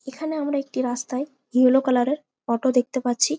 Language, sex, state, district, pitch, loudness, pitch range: Bengali, female, West Bengal, Jalpaiguri, 260 Hz, -23 LUFS, 245-280 Hz